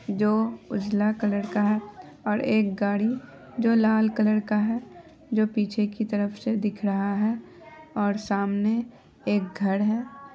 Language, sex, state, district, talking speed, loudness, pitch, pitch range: Hindi, female, Bihar, Araria, 155 wpm, -26 LUFS, 215 Hz, 205-225 Hz